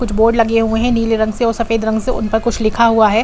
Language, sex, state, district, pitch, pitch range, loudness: Hindi, female, Bihar, Saran, 225 Hz, 220-230 Hz, -15 LUFS